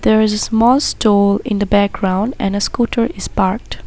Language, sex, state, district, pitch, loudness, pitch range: English, female, Assam, Sonitpur, 210 Hz, -15 LUFS, 200-230 Hz